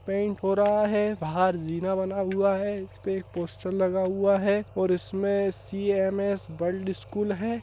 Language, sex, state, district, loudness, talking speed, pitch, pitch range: Hindi, male, Bihar, Saharsa, -27 LUFS, 165 wpm, 195 Hz, 190-200 Hz